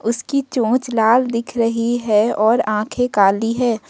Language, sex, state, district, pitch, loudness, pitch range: Hindi, female, Jharkhand, Ranchi, 230 Hz, -17 LUFS, 220-245 Hz